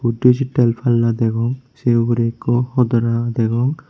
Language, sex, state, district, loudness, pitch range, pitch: Chakma, male, Tripura, Unakoti, -17 LUFS, 115-125 Hz, 120 Hz